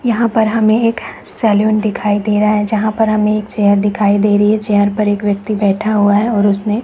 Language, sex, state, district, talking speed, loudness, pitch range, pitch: Hindi, female, Chhattisgarh, Raigarh, 235 wpm, -13 LUFS, 205-215 Hz, 210 Hz